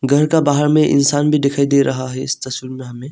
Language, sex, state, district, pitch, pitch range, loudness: Hindi, male, Arunachal Pradesh, Longding, 140 Hz, 130-145 Hz, -15 LUFS